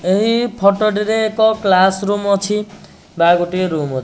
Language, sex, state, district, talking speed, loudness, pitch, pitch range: Odia, male, Odisha, Nuapada, 180 wpm, -15 LUFS, 200 Hz, 185-215 Hz